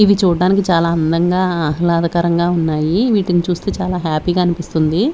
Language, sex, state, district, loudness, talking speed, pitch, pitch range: Telugu, female, Andhra Pradesh, Sri Satya Sai, -16 LUFS, 140 wpm, 175 Hz, 170-185 Hz